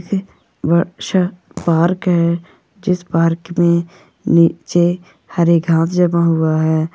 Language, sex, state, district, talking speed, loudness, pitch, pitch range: Hindi, female, Rajasthan, Churu, 95 wpm, -16 LUFS, 170 Hz, 165-180 Hz